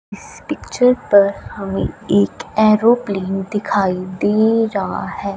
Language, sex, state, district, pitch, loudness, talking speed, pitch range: Hindi, female, Punjab, Fazilka, 200 Hz, -17 LUFS, 110 wpm, 195-215 Hz